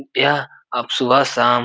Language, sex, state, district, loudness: Hindi, male, Bihar, Supaul, -18 LUFS